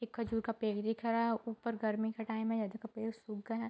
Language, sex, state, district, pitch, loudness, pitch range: Hindi, female, Bihar, Bhagalpur, 225 Hz, -37 LUFS, 220-230 Hz